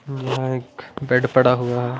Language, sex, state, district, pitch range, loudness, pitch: Hindi, male, Punjab, Pathankot, 125-130 Hz, -20 LUFS, 130 Hz